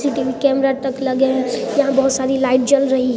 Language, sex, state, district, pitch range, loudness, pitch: Hindi, male, Chhattisgarh, Sarguja, 260-275 Hz, -17 LUFS, 265 Hz